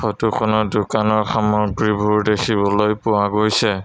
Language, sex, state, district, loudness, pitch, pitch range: Assamese, male, Assam, Sonitpur, -18 LUFS, 105 Hz, 105-110 Hz